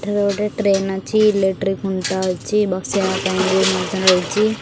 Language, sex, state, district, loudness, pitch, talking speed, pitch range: Odia, female, Odisha, Khordha, -18 LUFS, 195 Hz, 155 wpm, 190-205 Hz